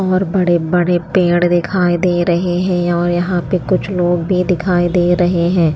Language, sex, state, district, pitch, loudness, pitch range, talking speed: Hindi, female, Himachal Pradesh, Shimla, 175 Hz, -15 LUFS, 175-180 Hz, 175 wpm